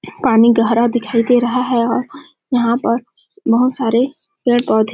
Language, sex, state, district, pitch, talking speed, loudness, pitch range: Hindi, female, Chhattisgarh, Sarguja, 240 Hz, 145 wpm, -15 LUFS, 230-250 Hz